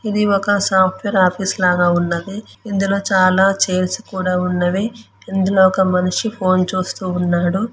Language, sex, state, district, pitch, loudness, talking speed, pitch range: Telugu, female, Andhra Pradesh, Guntur, 190 Hz, -17 LUFS, 115 wpm, 180-195 Hz